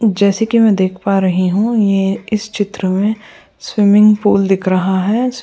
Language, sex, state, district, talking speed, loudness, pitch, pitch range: Hindi, female, Goa, North and South Goa, 175 wpm, -14 LUFS, 205 Hz, 195-215 Hz